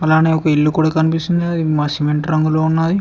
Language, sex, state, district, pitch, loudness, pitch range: Telugu, male, Telangana, Mahabubabad, 160 Hz, -16 LUFS, 155-160 Hz